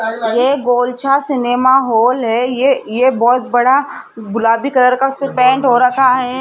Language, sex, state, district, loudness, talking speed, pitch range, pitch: Hindi, female, Rajasthan, Jaipur, -13 LUFS, 160 wpm, 240-265 Hz, 250 Hz